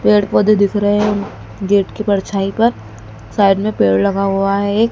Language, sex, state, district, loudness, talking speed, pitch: Hindi, female, Madhya Pradesh, Dhar, -15 LUFS, 195 wpm, 200 Hz